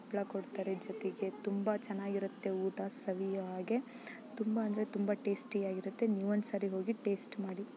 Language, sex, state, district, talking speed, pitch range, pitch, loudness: Kannada, female, Karnataka, Raichur, 145 wpm, 195-220 Hz, 200 Hz, -38 LUFS